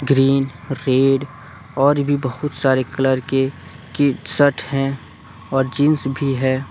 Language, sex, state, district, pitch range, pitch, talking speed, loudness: Hindi, male, Jharkhand, Deoghar, 130-140 Hz, 135 Hz, 135 wpm, -19 LUFS